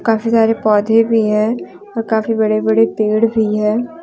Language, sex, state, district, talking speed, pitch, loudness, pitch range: Hindi, female, Jharkhand, Deoghar, 180 wpm, 225 Hz, -15 LUFS, 215-225 Hz